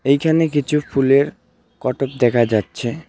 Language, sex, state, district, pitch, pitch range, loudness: Bengali, male, West Bengal, Alipurduar, 140 Hz, 125-150 Hz, -18 LUFS